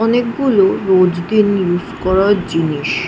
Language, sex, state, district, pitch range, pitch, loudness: Bengali, female, West Bengal, Jhargram, 175-215 Hz, 190 Hz, -14 LUFS